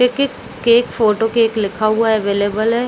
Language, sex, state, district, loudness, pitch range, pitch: Hindi, female, Chhattisgarh, Bilaspur, -16 LUFS, 215-235 Hz, 225 Hz